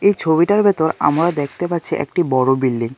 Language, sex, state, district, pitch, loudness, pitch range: Bengali, male, Tripura, West Tripura, 160 Hz, -17 LUFS, 135-175 Hz